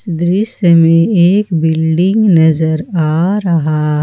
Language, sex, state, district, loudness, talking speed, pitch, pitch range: Hindi, female, Jharkhand, Ranchi, -11 LUFS, 105 wpm, 170 Hz, 160-185 Hz